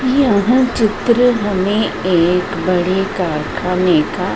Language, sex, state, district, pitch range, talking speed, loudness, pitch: Hindi, female, Madhya Pradesh, Dhar, 180-235 Hz, 95 wpm, -15 LUFS, 195 Hz